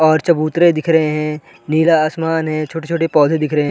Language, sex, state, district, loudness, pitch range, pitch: Hindi, male, Chhattisgarh, Sarguja, -15 LUFS, 150-165 Hz, 155 Hz